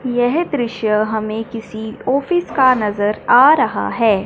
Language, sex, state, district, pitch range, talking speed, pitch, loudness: Hindi, male, Punjab, Fazilka, 215-255 Hz, 140 wpm, 225 Hz, -16 LUFS